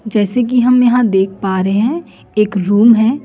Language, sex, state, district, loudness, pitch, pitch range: Hindi, female, Chhattisgarh, Raipur, -13 LUFS, 220 Hz, 200-245 Hz